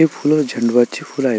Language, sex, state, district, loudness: Marathi, male, Maharashtra, Sindhudurg, -17 LUFS